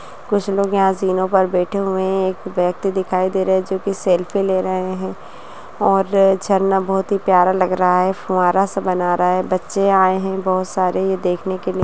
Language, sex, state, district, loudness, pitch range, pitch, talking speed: Hindi, female, Bihar, Muzaffarpur, -18 LUFS, 185-195 Hz, 190 Hz, 215 wpm